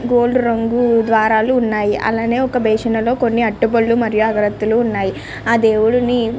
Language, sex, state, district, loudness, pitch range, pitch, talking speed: Telugu, female, Andhra Pradesh, Srikakulam, -15 LUFS, 220-240 Hz, 230 Hz, 150 wpm